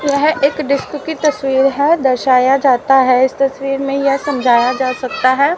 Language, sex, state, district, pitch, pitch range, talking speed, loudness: Hindi, female, Haryana, Rohtak, 275 Hz, 260-285 Hz, 185 wpm, -14 LUFS